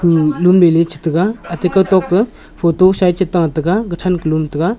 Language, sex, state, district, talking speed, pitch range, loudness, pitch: Wancho, male, Arunachal Pradesh, Longding, 240 wpm, 165-185 Hz, -14 LUFS, 175 Hz